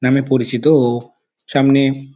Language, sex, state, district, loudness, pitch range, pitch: Bengali, male, West Bengal, Dakshin Dinajpur, -15 LUFS, 125-135 Hz, 135 Hz